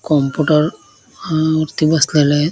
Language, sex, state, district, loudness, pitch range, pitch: Marathi, male, Maharashtra, Dhule, -15 LUFS, 150-160 Hz, 155 Hz